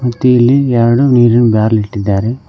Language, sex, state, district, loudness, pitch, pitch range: Kannada, male, Karnataka, Koppal, -10 LUFS, 120 Hz, 110-125 Hz